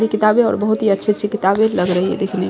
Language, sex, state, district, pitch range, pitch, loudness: Hindi, female, Bihar, Saharsa, 195-220 Hz, 210 Hz, -16 LUFS